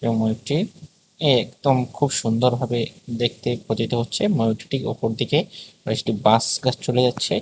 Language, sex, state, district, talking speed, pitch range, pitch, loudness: Bengali, male, Tripura, West Tripura, 130 wpm, 115-135 Hz, 120 Hz, -22 LUFS